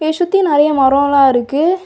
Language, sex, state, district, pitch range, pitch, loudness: Tamil, female, Tamil Nadu, Kanyakumari, 275-355 Hz, 295 Hz, -12 LUFS